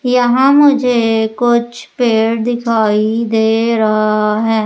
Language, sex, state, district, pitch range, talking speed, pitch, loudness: Hindi, female, Madhya Pradesh, Umaria, 220-240 Hz, 105 wpm, 230 Hz, -13 LUFS